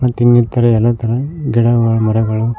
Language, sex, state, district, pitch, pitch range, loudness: Kannada, male, Karnataka, Koppal, 120 Hz, 115-120 Hz, -13 LUFS